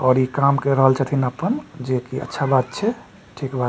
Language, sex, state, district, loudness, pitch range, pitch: Maithili, male, Bihar, Supaul, -20 LUFS, 130-140 Hz, 135 Hz